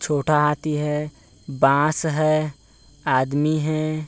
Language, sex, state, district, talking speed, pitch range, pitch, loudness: Hindi, male, Chhattisgarh, Bilaspur, 105 wpm, 145-155 Hz, 150 Hz, -21 LUFS